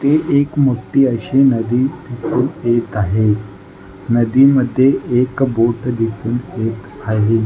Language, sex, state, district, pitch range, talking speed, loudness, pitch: Marathi, male, Maharashtra, Nagpur, 110-135 Hz, 115 wpm, -16 LUFS, 120 Hz